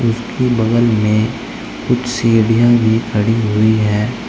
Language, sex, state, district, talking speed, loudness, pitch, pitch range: Hindi, male, Uttar Pradesh, Saharanpur, 125 wpm, -14 LUFS, 115 Hz, 110-120 Hz